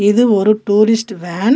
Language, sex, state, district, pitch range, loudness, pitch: Tamil, female, Tamil Nadu, Nilgiris, 200-225 Hz, -13 LUFS, 210 Hz